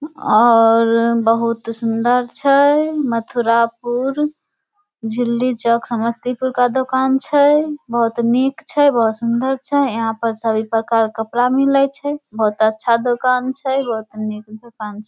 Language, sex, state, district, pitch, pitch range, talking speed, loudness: Maithili, female, Bihar, Samastipur, 240 Hz, 230-270 Hz, 125 wpm, -17 LUFS